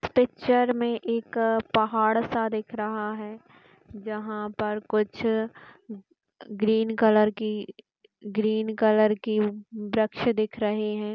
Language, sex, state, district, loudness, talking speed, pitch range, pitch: Marathi, female, Maharashtra, Sindhudurg, -26 LUFS, 120 wpm, 215-225 Hz, 220 Hz